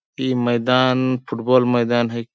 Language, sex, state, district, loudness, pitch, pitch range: Sadri, male, Chhattisgarh, Jashpur, -19 LUFS, 125 Hz, 120-130 Hz